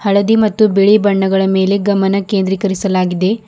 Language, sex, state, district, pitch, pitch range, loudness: Kannada, female, Karnataka, Bidar, 200 Hz, 190-205 Hz, -13 LUFS